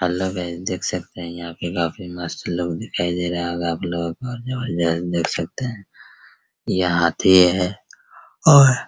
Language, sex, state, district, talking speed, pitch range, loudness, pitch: Hindi, male, Bihar, Araria, 170 wpm, 85-95 Hz, -21 LUFS, 90 Hz